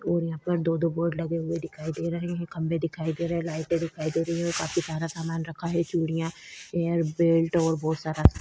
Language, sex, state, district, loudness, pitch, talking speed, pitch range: Hindi, female, Uttar Pradesh, Budaun, -28 LUFS, 165 Hz, 235 wpm, 160-170 Hz